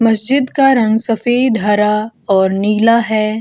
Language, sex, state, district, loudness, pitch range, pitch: Hindi, female, Bihar, Gopalganj, -13 LUFS, 210-240 Hz, 220 Hz